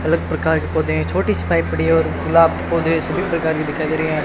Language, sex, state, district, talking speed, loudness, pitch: Hindi, male, Rajasthan, Bikaner, 295 wpm, -18 LUFS, 150 Hz